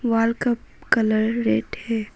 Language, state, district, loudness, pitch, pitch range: Hindi, Arunachal Pradesh, Papum Pare, -22 LUFS, 225 Hz, 215-235 Hz